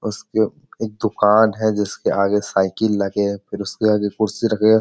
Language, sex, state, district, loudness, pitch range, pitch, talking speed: Hindi, male, Bihar, Jamui, -19 LUFS, 100-110 Hz, 105 Hz, 185 wpm